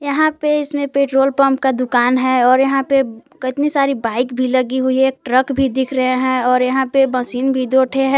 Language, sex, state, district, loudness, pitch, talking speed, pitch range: Hindi, female, Jharkhand, Palamu, -16 LUFS, 265 Hz, 225 wpm, 255-275 Hz